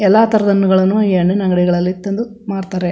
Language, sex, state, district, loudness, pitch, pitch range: Kannada, female, Karnataka, Chamarajanagar, -15 LUFS, 195 Hz, 185-205 Hz